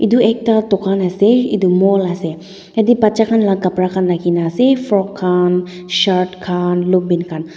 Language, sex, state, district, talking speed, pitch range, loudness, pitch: Nagamese, female, Nagaland, Dimapur, 165 wpm, 180-215 Hz, -15 LUFS, 185 Hz